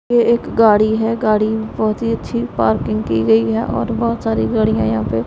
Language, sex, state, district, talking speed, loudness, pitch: Hindi, female, Punjab, Pathankot, 205 wpm, -16 LUFS, 210 Hz